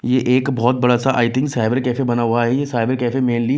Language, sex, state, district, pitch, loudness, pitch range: Hindi, male, Bihar, West Champaran, 125 Hz, -18 LUFS, 120-130 Hz